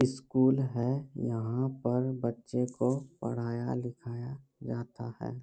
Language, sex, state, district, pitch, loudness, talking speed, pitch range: Hindi, male, Bihar, Bhagalpur, 125 Hz, -33 LUFS, 110 wpm, 120-130 Hz